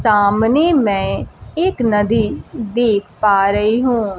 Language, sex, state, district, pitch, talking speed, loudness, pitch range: Hindi, female, Bihar, Kaimur, 220 Hz, 115 wpm, -16 LUFS, 205-240 Hz